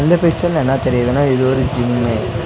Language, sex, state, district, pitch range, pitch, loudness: Tamil, male, Tamil Nadu, Nilgiris, 125-145 Hz, 130 Hz, -15 LUFS